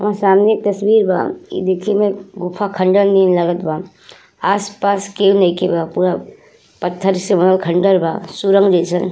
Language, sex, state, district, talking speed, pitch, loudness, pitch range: Bhojpuri, female, Uttar Pradesh, Ghazipur, 165 wpm, 195 Hz, -15 LUFS, 180-200 Hz